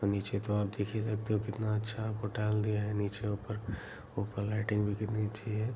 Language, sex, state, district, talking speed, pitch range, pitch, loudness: Hindi, male, Bihar, Bhagalpur, 220 wpm, 105-110 Hz, 105 Hz, -35 LUFS